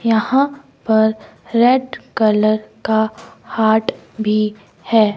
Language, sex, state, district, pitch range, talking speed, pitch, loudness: Hindi, female, Himachal Pradesh, Shimla, 215-230 Hz, 95 wpm, 220 Hz, -17 LUFS